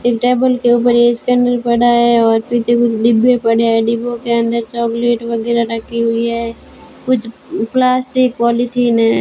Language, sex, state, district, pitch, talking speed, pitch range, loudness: Hindi, female, Rajasthan, Bikaner, 235 Hz, 170 wpm, 230-240 Hz, -14 LUFS